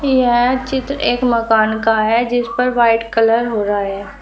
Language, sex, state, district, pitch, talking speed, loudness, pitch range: Hindi, female, Uttar Pradesh, Shamli, 230 Hz, 185 wpm, -15 LUFS, 220-250 Hz